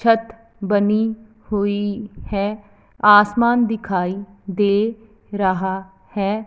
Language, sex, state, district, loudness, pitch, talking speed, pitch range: Hindi, female, Punjab, Fazilka, -19 LUFS, 205 Hz, 85 wpm, 200-220 Hz